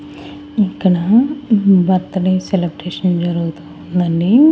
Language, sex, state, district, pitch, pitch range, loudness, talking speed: Telugu, female, Andhra Pradesh, Annamaya, 185 Hz, 175-210 Hz, -15 LUFS, 80 wpm